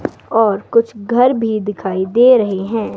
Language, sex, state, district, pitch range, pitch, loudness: Hindi, female, Himachal Pradesh, Shimla, 205-235 Hz, 225 Hz, -15 LUFS